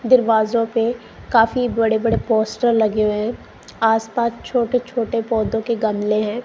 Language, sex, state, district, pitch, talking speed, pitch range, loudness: Hindi, female, Punjab, Kapurthala, 225 Hz, 160 wpm, 220-235 Hz, -19 LUFS